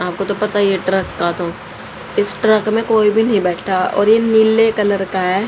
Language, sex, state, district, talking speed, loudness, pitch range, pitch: Hindi, female, Haryana, Rohtak, 230 wpm, -15 LUFS, 185-220 Hz, 200 Hz